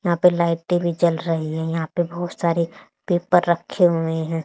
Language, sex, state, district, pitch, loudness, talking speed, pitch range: Hindi, female, Haryana, Charkhi Dadri, 170 Hz, -21 LUFS, 200 wpm, 165-175 Hz